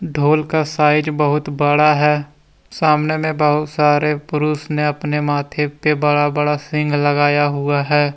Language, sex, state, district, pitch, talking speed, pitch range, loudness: Hindi, male, Jharkhand, Deoghar, 150 Hz, 145 wpm, 145-150 Hz, -17 LUFS